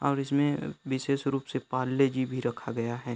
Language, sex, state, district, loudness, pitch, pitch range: Hindi, male, Bihar, Gopalganj, -30 LUFS, 130 Hz, 125-140 Hz